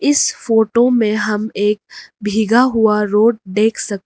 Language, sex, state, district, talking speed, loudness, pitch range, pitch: Hindi, female, Arunachal Pradesh, Lower Dibang Valley, 150 wpm, -15 LUFS, 210-230 Hz, 220 Hz